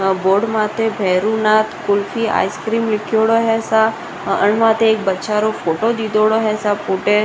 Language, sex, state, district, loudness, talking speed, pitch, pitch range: Rajasthani, female, Rajasthan, Nagaur, -16 LUFS, 110 wpm, 215 Hz, 205-225 Hz